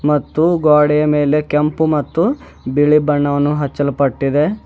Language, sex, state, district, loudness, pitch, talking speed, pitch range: Kannada, male, Karnataka, Bidar, -15 LUFS, 150 Hz, 105 wpm, 145-150 Hz